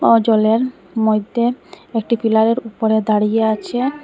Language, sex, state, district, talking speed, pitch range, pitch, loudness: Bengali, female, Assam, Hailakandi, 120 wpm, 220-235 Hz, 225 Hz, -17 LUFS